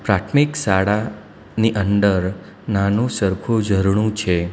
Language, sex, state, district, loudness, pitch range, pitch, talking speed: Gujarati, male, Gujarat, Valsad, -19 LUFS, 95-110 Hz, 105 Hz, 95 wpm